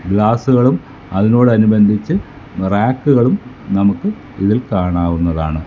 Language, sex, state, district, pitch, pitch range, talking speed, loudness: Malayalam, male, Kerala, Kasaragod, 105 Hz, 95-120 Hz, 75 wpm, -15 LUFS